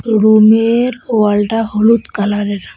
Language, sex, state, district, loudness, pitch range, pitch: Bengali, female, West Bengal, Cooch Behar, -12 LUFS, 205-225 Hz, 220 Hz